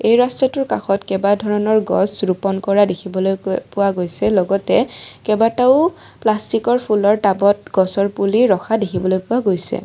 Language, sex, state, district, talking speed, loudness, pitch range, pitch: Assamese, female, Assam, Kamrup Metropolitan, 135 wpm, -17 LUFS, 195-225 Hz, 205 Hz